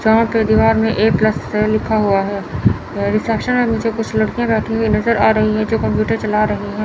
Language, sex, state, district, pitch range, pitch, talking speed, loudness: Hindi, male, Chandigarh, Chandigarh, 215-225 Hz, 220 Hz, 225 wpm, -16 LUFS